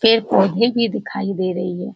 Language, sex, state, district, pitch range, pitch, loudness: Hindi, female, Bihar, Jamui, 185-230 Hz, 195 Hz, -19 LUFS